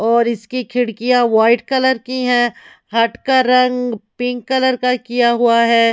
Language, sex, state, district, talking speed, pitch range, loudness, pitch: Hindi, female, Maharashtra, Mumbai Suburban, 160 wpm, 235-250 Hz, -15 LUFS, 245 Hz